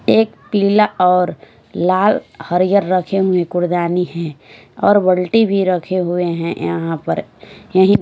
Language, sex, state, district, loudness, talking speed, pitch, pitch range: Hindi, female, Punjab, Fazilka, -16 LUFS, 140 wpm, 180 Hz, 170-200 Hz